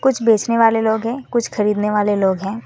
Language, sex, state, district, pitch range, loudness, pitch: Hindi, female, West Bengal, Alipurduar, 210-235 Hz, -17 LUFS, 225 Hz